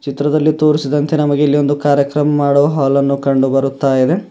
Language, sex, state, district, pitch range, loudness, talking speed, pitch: Kannada, male, Karnataka, Bidar, 140-150 Hz, -14 LUFS, 165 wpm, 145 Hz